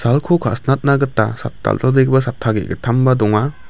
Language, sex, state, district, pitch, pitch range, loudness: Garo, male, Meghalaya, West Garo Hills, 130 Hz, 115-135 Hz, -16 LUFS